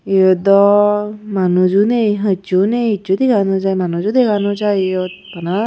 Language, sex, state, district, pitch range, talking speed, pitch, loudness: Chakma, female, Tripura, Unakoti, 185-210 Hz, 170 wpm, 200 Hz, -15 LUFS